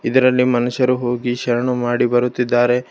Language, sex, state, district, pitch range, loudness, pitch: Kannada, male, Karnataka, Bidar, 120-125 Hz, -17 LUFS, 125 Hz